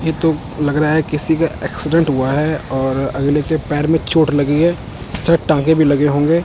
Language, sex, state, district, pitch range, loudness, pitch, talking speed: Hindi, male, Punjab, Kapurthala, 140-160 Hz, -16 LUFS, 150 Hz, 215 wpm